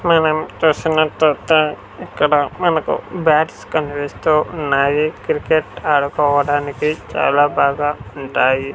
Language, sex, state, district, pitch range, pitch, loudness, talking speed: Telugu, male, Andhra Pradesh, Sri Satya Sai, 145-155 Hz, 150 Hz, -17 LUFS, 90 wpm